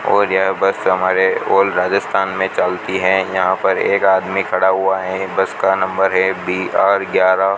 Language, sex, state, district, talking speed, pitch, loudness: Hindi, male, Rajasthan, Bikaner, 180 wpm, 95 Hz, -16 LUFS